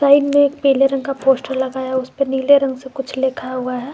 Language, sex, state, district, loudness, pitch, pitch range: Hindi, female, Jharkhand, Garhwa, -17 LUFS, 270 Hz, 260-275 Hz